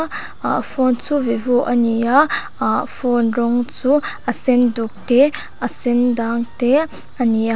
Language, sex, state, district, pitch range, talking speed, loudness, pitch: Mizo, female, Mizoram, Aizawl, 235-275 Hz, 165 wpm, -18 LUFS, 245 Hz